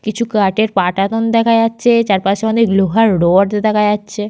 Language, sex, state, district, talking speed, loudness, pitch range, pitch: Bengali, female, Jharkhand, Sahebganj, 155 wpm, -14 LUFS, 195-225 Hz, 210 Hz